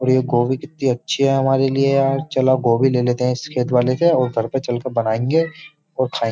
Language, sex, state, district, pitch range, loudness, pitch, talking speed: Hindi, male, Uttar Pradesh, Jyotiba Phule Nagar, 125-135 Hz, -18 LUFS, 130 Hz, 235 wpm